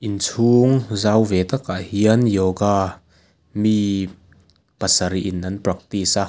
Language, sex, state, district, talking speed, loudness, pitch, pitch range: Mizo, male, Mizoram, Aizawl, 115 wpm, -19 LUFS, 100 Hz, 95-105 Hz